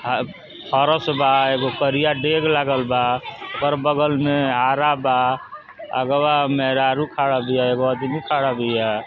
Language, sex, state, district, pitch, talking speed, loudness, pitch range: Bhojpuri, male, Uttar Pradesh, Ghazipur, 135 Hz, 140 wpm, -19 LUFS, 130-145 Hz